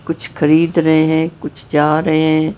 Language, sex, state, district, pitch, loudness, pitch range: Hindi, female, Maharashtra, Mumbai Suburban, 155 Hz, -14 LUFS, 150-160 Hz